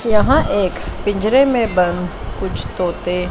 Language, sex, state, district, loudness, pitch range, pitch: Hindi, female, Chandigarh, Chandigarh, -17 LUFS, 180-220 Hz, 195 Hz